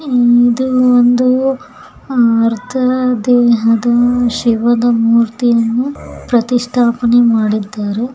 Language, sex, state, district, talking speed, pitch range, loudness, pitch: Kannada, female, Karnataka, Bellary, 65 wpm, 230-250 Hz, -12 LUFS, 240 Hz